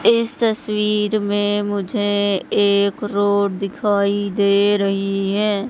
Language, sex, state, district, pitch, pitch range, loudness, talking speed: Hindi, female, Madhya Pradesh, Katni, 205 Hz, 200-210 Hz, -18 LUFS, 105 wpm